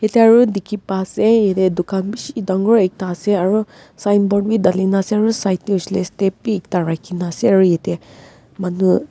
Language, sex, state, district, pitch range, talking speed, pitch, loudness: Nagamese, female, Nagaland, Kohima, 185-215 Hz, 185 wpm, 195 Hz, -17 LUFS